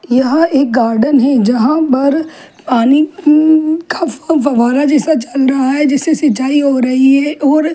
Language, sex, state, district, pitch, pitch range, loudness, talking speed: Hindi, female, Delhi, New Delhi, 285 Hz, 260-310 Hz, -11 LUFS, 160 wpm